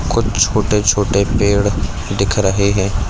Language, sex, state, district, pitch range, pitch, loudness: Hindi, male, Chhattisgarh, Bilaspur, 95-105 Hz, 100 Hz, -15 LUFS